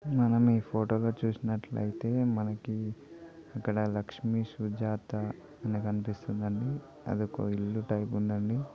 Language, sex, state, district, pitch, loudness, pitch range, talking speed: Telugu, male, Telangana, Nalgonda, 110 Hz, -32 LUFS, 105-115 Hz, 110 wpm